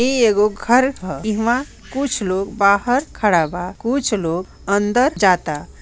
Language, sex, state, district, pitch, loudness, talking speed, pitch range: Bhojpuri, female, Bihar, Gopalganj, 210 Hz, -18 LUFS, 145 wpm, 185-245 Hz